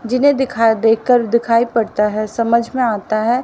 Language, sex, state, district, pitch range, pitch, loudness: Hindi, female, Haryana, Rohtak, 225-245 Hz, 230 Hz, -15 LUFS